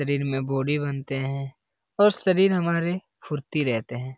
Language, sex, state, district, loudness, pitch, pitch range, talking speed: Hindi, male, Bihar, Lakhisarai, -25 LUFS, 145 Hz, 135-170 Hz, 160 wpm